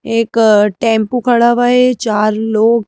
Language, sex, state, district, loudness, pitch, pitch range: Hindi, female, Madhya Pradesh, Bhopal, -12 LUFS, 230 Hz, 215-240 Hz